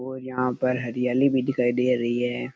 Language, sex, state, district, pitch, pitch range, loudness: Rajasthani, male, Rajasthan, Churu, 125 Hz, 125-130 Hz, -24 LUFS